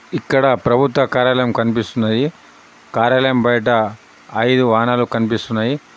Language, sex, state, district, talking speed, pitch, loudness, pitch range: Telugu, male, Telangana, Adilabad, 90 wpm, 120 Hz, -16 LUFS, 115-130 Hz